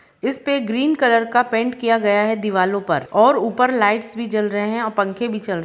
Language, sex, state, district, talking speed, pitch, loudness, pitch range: Hindi, female, Jharkhand, Jamtara, 265 wpm, 225 Hz, -18 LUFS, 205-240 Hz